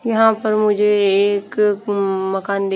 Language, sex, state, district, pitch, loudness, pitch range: Hindi, female, Haryana, Rohtak, 205 Hz, -17 LUFS, 195-215 Hz